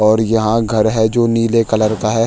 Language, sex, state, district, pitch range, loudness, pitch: Hindi, male, Uttarakhand, Tehri Garhwal, 110-115 Hz, -14 LUFS, 110 Hz